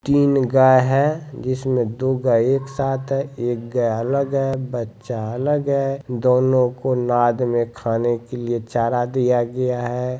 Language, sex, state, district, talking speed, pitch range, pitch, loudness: Hindi, male, Bihar, Jamui, 160 wpm, 120-135 Hz, 125 Hz, -20 LUFS